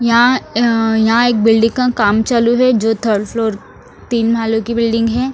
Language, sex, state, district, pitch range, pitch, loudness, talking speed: Hindi, female, Punjab, Fazilka, 225-235 Hz, 230 Hz, -14 LUFS, 190 wpm